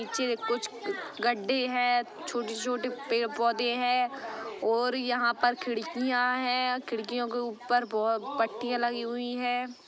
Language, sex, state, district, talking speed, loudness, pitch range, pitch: Hindi, female, Chhattisgarh, Bastar, 130 wpm, -29 LUFS, 235-250 Hz, 245 Hz